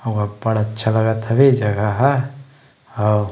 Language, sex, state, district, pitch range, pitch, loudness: Chhattisgarhi, male, Chhattisgarh, Bastar, 105-135 Hz, 110 Hz, -18 LUFS